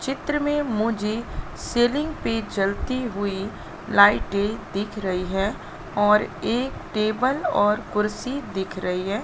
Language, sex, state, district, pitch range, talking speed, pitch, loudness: Hindi, female, Madhya Pradesh, Katni, 200-255 Hz, 125 wpm, 215 Hz, -24 LUFS